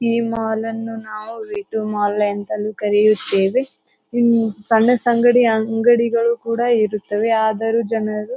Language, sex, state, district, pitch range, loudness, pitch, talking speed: Kannada, female, Karnataka, Bijapur, 215-235 Hz, -18 LUFS, 225 Hz, 110 wpm